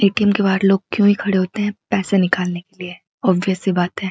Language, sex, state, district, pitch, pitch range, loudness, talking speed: Hindi, female, Uttarakhand, Uttarkashi, 195 Hz, 185-205 Hz, -18 LUFS, 250 wpm